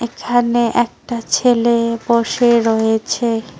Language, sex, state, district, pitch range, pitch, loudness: Bengali, female, West Bengal, Cooch Behar, 230-240 Hz, 235 Hz, -16 LUFS